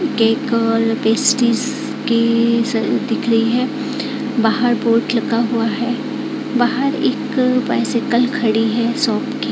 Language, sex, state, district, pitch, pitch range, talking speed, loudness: Hindi, female, Odisha, Khordha, 245 Hz, 230-270 Hz, 125 wpm, -17 LUFS